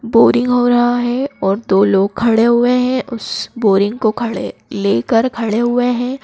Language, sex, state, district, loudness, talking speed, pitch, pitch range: Hindi, female, Madhya Pradesh, Dhar, -15 LUFS, 175 wpm, 235 Hz, 215-245 Hz